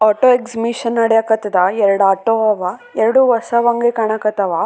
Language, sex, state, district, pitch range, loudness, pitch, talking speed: Kannada, female, Karnataka, Raichur, 200-235 Hz, -15 LUFS, 225 Hz, 75 wpm